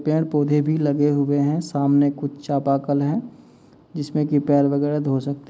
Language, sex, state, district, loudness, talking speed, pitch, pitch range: Hindi, male, Uttar Pradesh, Muzaffarnagar, -21 LUFS, 175 wpm, 145 Hz, 140-150 Hz